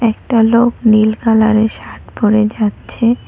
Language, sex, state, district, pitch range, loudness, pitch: Bengali, female, West Bengal, Cooch Behar, 215-230 Hz, -13 LUFS, 220 Hz